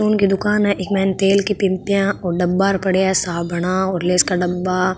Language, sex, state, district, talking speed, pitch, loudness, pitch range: Marwari, female, Rajasthan, Nagaur, 205 wpm, 190 Hz, -18 LUFS, 180-195 Hz